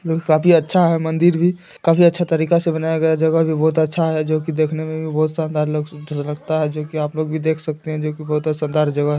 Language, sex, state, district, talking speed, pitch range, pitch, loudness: Hindi, male, Bihar, Jamui, 265 wpm, 155-165 Hz, 155 Hz, -18 LUFS